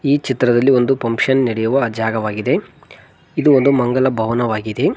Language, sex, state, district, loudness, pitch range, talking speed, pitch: Kannada, male, Karnataka, Koppal, -16 LUFS, 115-135 Hz, 120 wpm, 125 Hz